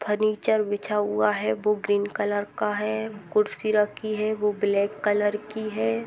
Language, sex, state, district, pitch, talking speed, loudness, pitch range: Hindi, female, Jharkhand, Sahebganj, 210 Hz, 170 wpm, -25 LUFS, 205-215 Hz